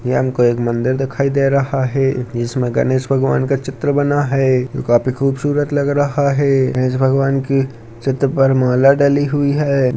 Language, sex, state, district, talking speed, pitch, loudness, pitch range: Hindi, male, Rajasthan, Churu, 175 wpm, 135 Hz, -16 LUFS, 130-140 Hz